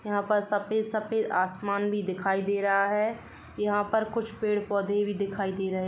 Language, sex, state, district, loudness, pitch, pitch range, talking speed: Hindi, female, Uttar Pradesh, Jalaun, -28 LUFS, 205 Hz, 200-215 Hz, 205 wpm